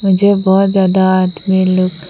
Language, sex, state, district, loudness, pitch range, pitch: Hindi, female, Mizoram, Aizawl, -12 LUFS, 185-195 Hz, 190 Hz